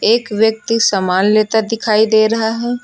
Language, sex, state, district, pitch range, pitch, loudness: Hindi, female, Uttar Pradesh, Lucknow, 215-230 Hz, 220 Hz, -14 LUFS